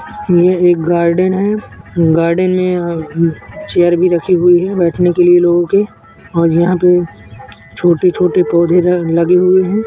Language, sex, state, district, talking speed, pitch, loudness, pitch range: Hindi, male, Uttar Pradesh, Etah, 145 wpm, 175 Hz, -12 LUFS, 170-180 Hz